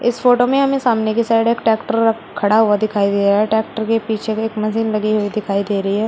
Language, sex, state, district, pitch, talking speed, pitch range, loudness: Hindi, female, Uttar Pradesh, Shamli, 220 Hz, 265 wpm, 210-225 Hz, -17 LUFS